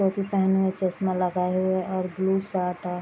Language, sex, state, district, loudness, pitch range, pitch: Hindi, female, Bihar, Madhepura, -25 LUFS, 180-190 Hz, 185 Hz